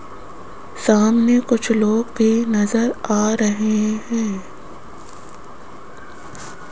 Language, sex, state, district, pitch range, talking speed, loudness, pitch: Hindi, female, Rajasthan, Jaipur, 210-230 Hz, 70 wpm, -18 LUFS, 215 Hz